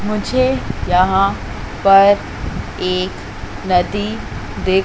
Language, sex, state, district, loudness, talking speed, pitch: Hindi, female, Madhya Pradesh, Katni, -16 LUFS, 75 wpm, 180 Hz